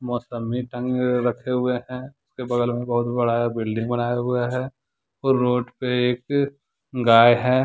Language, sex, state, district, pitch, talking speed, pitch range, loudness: Hindi, male, Jharkhand, Deoghar, 125 Hz, 175 wpm, 120-125 Hz, -22 LUFS